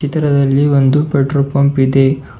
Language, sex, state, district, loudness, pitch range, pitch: Kannada, male, Karnataka, Bidar, -13 LUFS, 135-145 Hz, 140 Hz